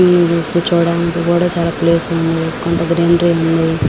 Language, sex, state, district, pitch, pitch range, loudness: Telugu, female, Andhra Pradesh, Srikakulam, 170 Hz, 165-170 Hz, -14 LUFS